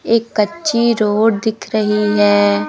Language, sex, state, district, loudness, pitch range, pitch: Hindi, male, Madhya Pradesh, Umaria, -15 LUFS, 175-225 Hz, 215 Hz